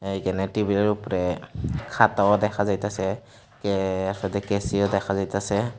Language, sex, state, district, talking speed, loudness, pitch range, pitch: Bengali, male, Tripura, Unakoti, 115 wpm, -24 LUFS, 95-105 Hz, 100 Hz